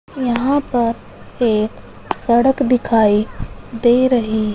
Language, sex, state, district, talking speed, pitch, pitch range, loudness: Hindi, male, Punjab, Fazilka, 90 wpm, 235 Hz, 220-250 Hz, -17 LUFS